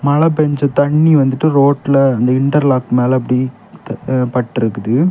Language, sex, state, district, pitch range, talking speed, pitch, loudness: Tamil, male, Tamil Nadu, Kanyakumari, 125-145 Hz, 115 wpm, 135 Hz, -14 LUFS